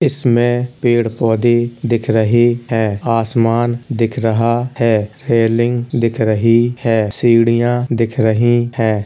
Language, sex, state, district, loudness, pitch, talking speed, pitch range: Hindi, male, Uttar Pradesh, Hamirpur, -15 LUFS, 115 Hz, 120 wpm, 115-120 Hz